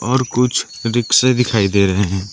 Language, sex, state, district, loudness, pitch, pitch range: Hindi, male, Arunachal Pradesh, Lower Dibang Valley, -16 LUFS, 115 Hz, 100-125 Hz